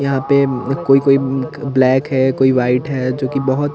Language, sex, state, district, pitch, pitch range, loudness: Hindi, male, Chandigarh, Chandigarh, 135 Hz, 130-140 Hz, -15 LUFS